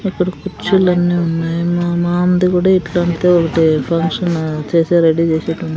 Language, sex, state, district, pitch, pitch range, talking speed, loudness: Telugu, female, Andhra Pradesh, Sri Satya Sai, 175 Hz, 165-180 Hz, 135 wpm, -15 LUFS